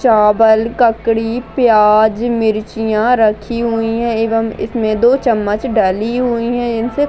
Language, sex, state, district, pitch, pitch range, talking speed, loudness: Hindi, female, Bihar, Muzaffarpur, 225 Hz, 220-235 Hz, 135 wpm, -14 LUFS